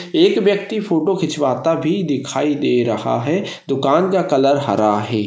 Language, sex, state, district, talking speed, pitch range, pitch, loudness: Hindi, male, Maharashtra, Solapur, 160 wpm, 120-180 Hz, 145 Hz, -17 LUFS